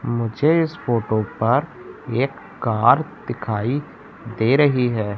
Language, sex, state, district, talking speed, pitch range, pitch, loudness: Hindi, male, Madhya Pradesh, Katni, 115 wpm, 110-145 Hz, 120 Hz, -20 LUFS